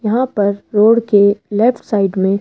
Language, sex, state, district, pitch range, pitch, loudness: Hindi, female, Rajasthan, Jaipur, 200-225 Hz, 205 Hz, -14 LUFS